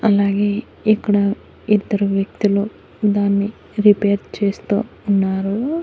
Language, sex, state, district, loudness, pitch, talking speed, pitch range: Telugu, female, Andhra Pradesh, Annamaya, -18 LUFS, 205 Hz, 80 wpm, 200-210 Hz